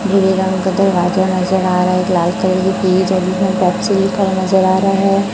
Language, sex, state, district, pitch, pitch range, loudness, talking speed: Hindi, female, Chhattisgarh, Raipur, 190 Hz, 185-195 Hz, -14 LUFS, 225 wpm